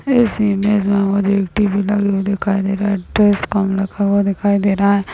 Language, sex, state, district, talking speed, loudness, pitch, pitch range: Hindi, female, Rajasthan, Churu, 235 wpm, -16 LUFS, 200 Hz, 195-205 Hz